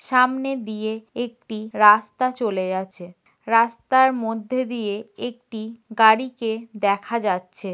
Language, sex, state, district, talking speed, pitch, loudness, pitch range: Bengali, female, West Bengal, North 24 Parganas, 100 wpm, 225 Hz, -21 LUFS, 210-245 Hz